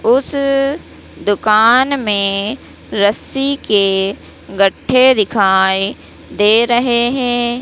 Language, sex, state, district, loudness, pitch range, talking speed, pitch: Hindi, female, Madhya Pradesh, Dhar, -13 LUFS, 200-260 Hz, 80 wpm, 230 Hz